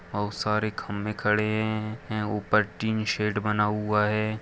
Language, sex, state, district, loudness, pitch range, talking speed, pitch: Hindi, male, Jharkhand, Sahebganj, -27 LUFS, 105-110 Hz, 150 wpm, 105 Hz